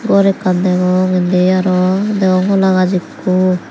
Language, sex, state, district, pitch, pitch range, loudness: Chakma, female, Tripura, Dhalai, 185 Hz, 185-190 Hz, -13 LUFS